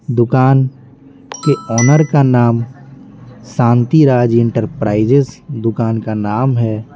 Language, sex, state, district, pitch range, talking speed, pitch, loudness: Hindi, male, Bihar, Patna, 115-135 Hz, 95 wpm, 125 Hz, -13 LUFS